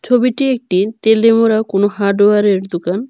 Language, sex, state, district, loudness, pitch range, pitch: Bengali, female, Tripura, Dhalai, -14 LUFS, 200-230 Hz, 210 Hz